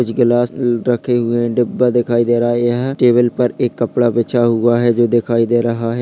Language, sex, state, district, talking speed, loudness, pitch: Hindi, male, Bihar, Begusarai, 240 wpm, -15 LUFS, 120 Hz